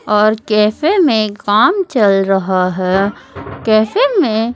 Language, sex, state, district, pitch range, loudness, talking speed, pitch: Hindi, female, Chhattisgarh, Raipur, 200-260 Hz, -13 LUFS, 120 wpm, 215 Hz